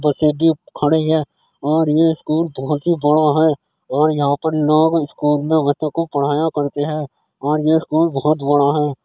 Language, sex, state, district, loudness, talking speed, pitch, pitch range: Hindi, male, Uttar Pradesh, Jyotiba Phule Nagar, -17 LUFS, 185 wpm, 150 Hz, 145-160 Hz